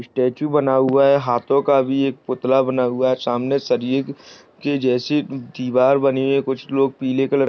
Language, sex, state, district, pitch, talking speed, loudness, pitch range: Hindi, male, Maharashtra, Solapur, 135 Hz, 190 wpm, -19 LUFS, 130-140 Hz